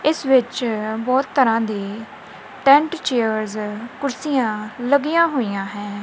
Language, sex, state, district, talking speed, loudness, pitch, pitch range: Punjabi, female, Punjab, Kapurthala, 110 wpm, -20 LUFS, 245 Hz, 215-275 Hz